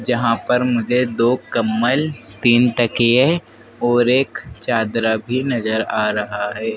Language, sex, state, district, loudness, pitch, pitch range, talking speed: Hindi, male, Madhya Pradesh, Dhar, -18 LUFS, 120 Hz, 110-125 Hz, 135 wpm